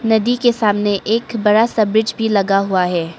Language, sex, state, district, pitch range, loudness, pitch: Hindi, male, Arunachal Pradesh, Papum Pare, 200-225 Hz, -16 LUFS, 215 Hz